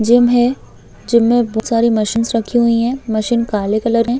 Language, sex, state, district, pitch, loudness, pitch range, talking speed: Hindi, female, Chhattisgarh, Bastar, 230 Hz, -15 LUFS, 225-240 Hz, 200 wpm